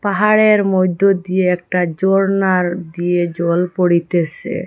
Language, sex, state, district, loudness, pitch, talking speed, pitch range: Bengali, female, Assam, Hailakandi, -15 LUFS, 180 Hz, 105 wpm, 175-195 Hz